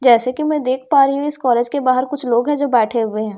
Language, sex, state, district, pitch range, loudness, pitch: Hindi, female, Bihar, Katihar, 240-285 Hz, -16 LUFS, 255 Hz